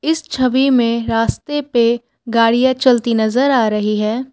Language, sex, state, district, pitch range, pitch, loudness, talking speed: Hindi, female, Assam, Kamrup Metropolitan, 230-260 Hz, 240 Hz, -15 LUFS, 150 wpm